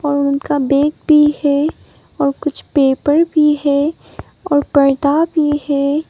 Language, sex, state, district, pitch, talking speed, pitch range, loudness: Hindi, female, Arunachal Pradesh, Papum Pare, 290 Hz, 135 wpm, 280-300 Hz, -15 LUFS